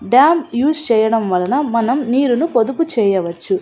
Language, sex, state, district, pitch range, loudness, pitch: Telugu, female, Andhra Pradesh, Anantapur, 210-295 Hz, -15 LUFS, 240 Hz